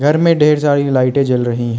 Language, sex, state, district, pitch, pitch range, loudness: Hindi, male, Arunachal Pradesh, Lower Dibang Valley, 140 Hz, 125-150 Hz, -14 LUFS